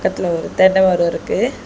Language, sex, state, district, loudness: Tamil, female, Tamil Nadu, Chennai, -16 LUFS